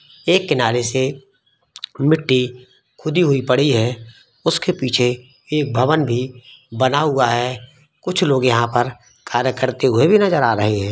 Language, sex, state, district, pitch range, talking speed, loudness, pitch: Hindi, male, Bihar, East Champaran, 125-150 Hz, 155 wpm, -18 LUFS, 130 Hz